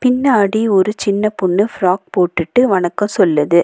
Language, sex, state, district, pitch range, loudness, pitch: Tamil, female, Tamil Nadu, Nilgiris, 180-215 Hz, -15 LUFS, 200 Hz